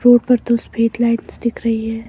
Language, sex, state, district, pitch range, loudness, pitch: Hindi, male, Himachal Pradesh, Shimla, 230-240 Hz, -17 LUFS, 230 Hz